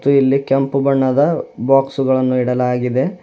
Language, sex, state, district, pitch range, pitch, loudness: Kannada, male, Karnataka, Bidar, 130-140 Hz, 135 Hz, -16 LUFS